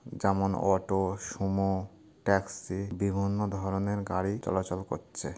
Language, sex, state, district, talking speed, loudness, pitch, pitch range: Bengali, male, West Bengal, Paschim Medinipur, 100 wpm, -31 LUFS, 95 Hz, 95-100 Hz